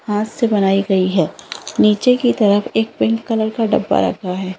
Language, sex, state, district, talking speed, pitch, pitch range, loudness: Hindi, female, Andhra Pradesh, Anantapur, 210 wpm, 210 Hz, 195-225 Hz, -16 LUFS